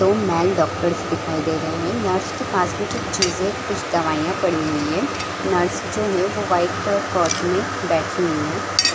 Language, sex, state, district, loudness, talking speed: Hindi, female, Chhattisgarh, Bilaspur, -21 LUFS, 180 wpm